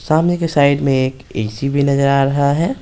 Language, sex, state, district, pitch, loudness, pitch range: Hindi, male, Bihar, Patna, 140 Hz, -16 LUFS, 135-145 Hz